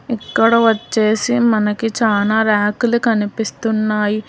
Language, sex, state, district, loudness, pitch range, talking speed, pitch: Telugu, female, Telangana, Hyderabad, -16 LUFS, 210-230 Hz, 85 wpm, 220 Hz